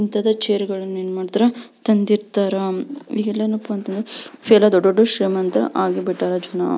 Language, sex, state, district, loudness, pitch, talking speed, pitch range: Kannada, female, Karnataka, Belgaum, -19 LUFS, 210 Hz, 140 wpm, 190-220 Hz